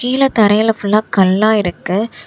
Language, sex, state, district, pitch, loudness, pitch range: Tamil, female, Tamil Nadu, Namakkal, 215 Hz, -14 LUFS, 200-225 Hz